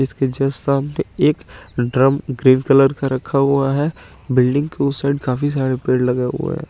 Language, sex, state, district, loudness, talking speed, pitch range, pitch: Hindi, male, Chandigarh, Chandigarh, -18 LUFS, 190 wpm, 125-140 Hz, 135 Hz